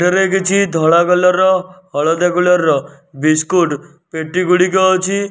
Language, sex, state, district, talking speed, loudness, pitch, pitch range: Odia, male, Odisha, Nuapada, 135 wpm, -14 LUFS, 180 Hz, 160-185 Hz